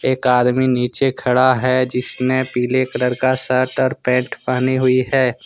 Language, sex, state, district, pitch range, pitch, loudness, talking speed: Hindi, male, Jharkhand, Ranchi, 125-130 Hz, 130 Hz, -17 LUFS, 165 wpm